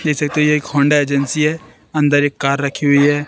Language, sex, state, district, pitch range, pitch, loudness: Hindi, female, Madhya Pradesh, Katni, 140-150 Hz, 145 Hz, -16 LUFS